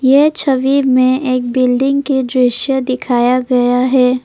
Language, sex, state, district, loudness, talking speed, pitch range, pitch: Hindi, female, Assam, Kamrup Metropolitan, -13 LUFS, 140 wpm, 250-270 Hz, 255 Hz